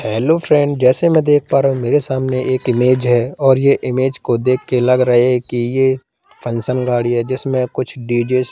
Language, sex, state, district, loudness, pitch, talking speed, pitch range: Hindi, male, Madhya Pradesh, Katni, -15 LUFS, 130 Hz, 220 wpm, 125-135 Hz